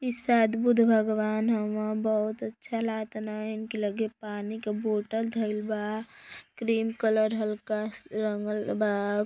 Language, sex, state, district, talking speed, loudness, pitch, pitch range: Hindi, female, Uttar Pradesh, Deoria, 130 wpm, -29 LUFS, 220 Hz, 215-225 Hz